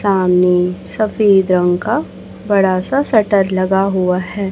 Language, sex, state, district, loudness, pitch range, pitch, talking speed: Hindi, male, Chhattisgarh, Raipur, -14 LUFS, 180-205 Hz, 190 Hz, 135 wpm